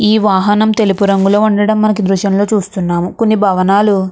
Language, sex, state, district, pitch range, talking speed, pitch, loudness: Telugu, female, Andhra Pradesh, Krishna, 195-215 Hz, 160 wpm, 200 Hz, -12 LUFS